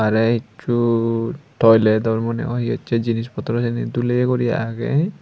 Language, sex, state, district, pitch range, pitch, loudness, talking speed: Chakma, male, Tripura, Unakoti, 115-120 Hz, 115 Hz, -19 LUFS, 150 wpm